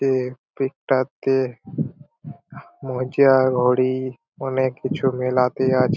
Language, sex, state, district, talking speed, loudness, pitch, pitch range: Bengali, male, West Bengal, Purulia, 80 wpm, -21 LUFS, 130 Hz, 125-135 Hz